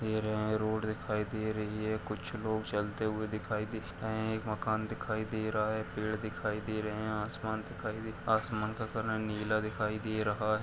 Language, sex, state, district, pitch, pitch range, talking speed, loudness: Hindi, male, Uttar Pradesh, Etah, 110 Hz, 105-110 Hz, 210 wpm, -35 LUFS